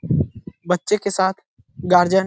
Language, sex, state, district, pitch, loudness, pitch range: Hindi, male, Bihar, Jahanabad, 190 Hz, -20 LUFS, 180-190 Hz